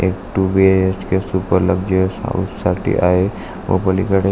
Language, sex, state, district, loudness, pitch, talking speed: Marathi, male, Maharashtra, Aurangabad, -17 LUFS, 95 Hz, 140 wpm